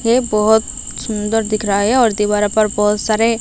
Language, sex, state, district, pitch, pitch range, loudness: Hindi, female, Odisha, Malkangiri, 215 Hz, 210-225 Hz, -15 LUFS